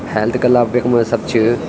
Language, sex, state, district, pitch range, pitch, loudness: Garhwali, male, Uttarakhand, Tehri Garhwal, 115-125 Hz, 120 Hz, -15 LUFS